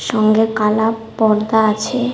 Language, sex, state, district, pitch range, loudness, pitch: Bengali, female, Tripura, West Tripura, 215-225 Hz, -15 LUFS, 220 Hz